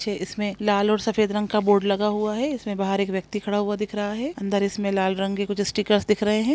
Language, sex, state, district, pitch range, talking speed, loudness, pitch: Hindi, female, Bihar, Jamui, 200-210 Hz, 275 wpm, -24 LUFS, 205 Hz